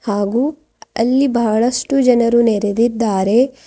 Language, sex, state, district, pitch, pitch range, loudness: Kannada, female, Karnataka, Bidar, 235 Hz, 220-255 Hz, -15 LUFS